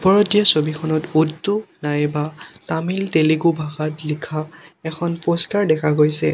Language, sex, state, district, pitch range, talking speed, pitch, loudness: Assamese, male, Assam, Sonitpur, 155-170 Hz, 125 wpm, 160 Hz, -18 LUFS